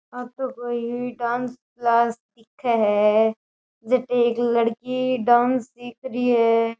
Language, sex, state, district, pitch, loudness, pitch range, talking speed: Rajasthani, female, Rajasthan, Nagaur, 240 Hz, -22 LUFS, 230-250 Hz, 125 wpm